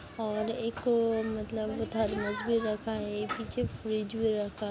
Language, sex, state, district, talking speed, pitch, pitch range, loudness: Hindi, female, Bihar, Jahanabad, 165 wpm, 220 Hz, 215-225 Hz, -32 LUFS